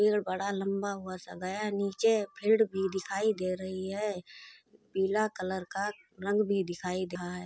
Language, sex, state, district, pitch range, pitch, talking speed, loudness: Hindi, female, Uttar Pradesh, Budaun, 185-210 Hz, 195 Hz, 175 wpm, -32 LUFS